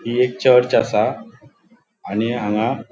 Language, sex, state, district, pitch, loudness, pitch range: Konkani, male, Goa, North and South Goa, 120 Hz, -18 LUFS, 110-125 Hz